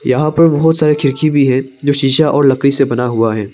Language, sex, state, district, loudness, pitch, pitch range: Hindi, male, Arunachal Pradesh, Papum Pare, -12 LUFS, 140 Hz, 130-155 Hz